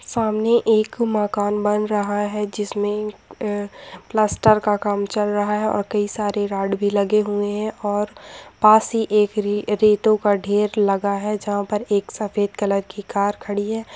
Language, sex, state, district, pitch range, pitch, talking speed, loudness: Hindi, female, Bihar, Jamui, 205-215 Hz, 210 Hz, 170 wpm, -20 LUFS